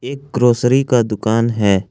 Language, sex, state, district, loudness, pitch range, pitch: Hindi, male, Jharkhand, Ranchi, -16 LUFS, 110-125 Hz, 120 Hz